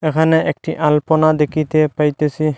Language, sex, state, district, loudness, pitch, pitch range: Bengali, male, Assam, Hailakandi, -16 LUFS, 155 Hz, 150-155 Hz